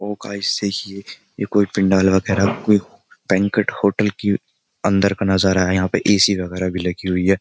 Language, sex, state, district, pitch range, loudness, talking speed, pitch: Hindi, male, Uttar Pradesh, Jyotiba Phule Nagar, 95-100 Hz, -18 LUFS, 185 wpm, 100 Hz